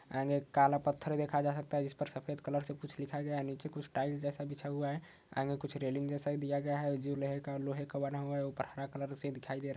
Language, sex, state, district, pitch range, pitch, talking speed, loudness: Hindi, male, Uttar Pradesh, Budaun, 140-145 Hz, 140 Hz, 260 wpm, -37 LUFS